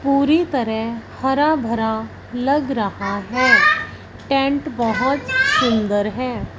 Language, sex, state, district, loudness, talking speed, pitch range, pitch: Hindi, female, Punjab, Fazilka, -18 LUFS, 100 wpm, 225-280 Hz, 255 Hz